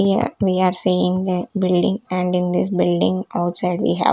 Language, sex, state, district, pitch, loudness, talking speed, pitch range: English, female, Chandigarh, Chandigarh, 185 Hz, -19 LUFS, 190 wpm, 180-190 Hz